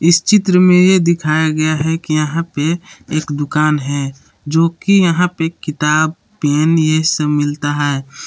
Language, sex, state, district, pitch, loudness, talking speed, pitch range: Hindi, male, Jharkhand, Palamu, 155 Hz, -15 LUFS, 165 wpm, 150-170 Hz